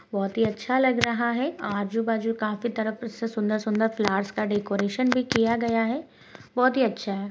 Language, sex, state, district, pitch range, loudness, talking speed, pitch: Hindi, female, Rajasthan, Churu, 210-240 Hz, -25 LUFS, 195 wpm, 225 Hz